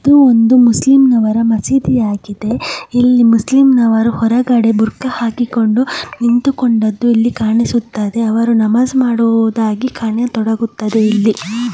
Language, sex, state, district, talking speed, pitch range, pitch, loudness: Kannada, male, Karnataka, Mysore, 90 wpm, 220-245 Hz, 230 Hz, -13 LUFS